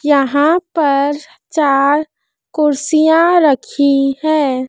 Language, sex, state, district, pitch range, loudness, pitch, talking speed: Hindi, female, Madhya Pradesh, Dhar, 280-310 Hz, -13 LUFS, 295 Hz, 75 wpm